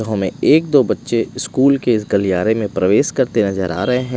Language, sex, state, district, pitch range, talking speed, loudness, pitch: Hindi, male, Odisha, Malkangiri, 100-130 Hz, 215 wpm, -16 LUFS, 110 Hz